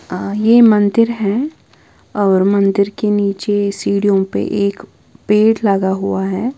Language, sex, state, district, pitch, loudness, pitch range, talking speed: Hindi, female, Uttar Pradesh, Lalitpur, 200 Hz, -15 LUFS, 195-215 Hz, 135 wpm